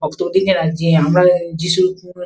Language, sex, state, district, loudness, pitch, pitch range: Bengali, female, West Bengal, Kolkata, -15 LUFS, 180 Hz, 165-185 Hz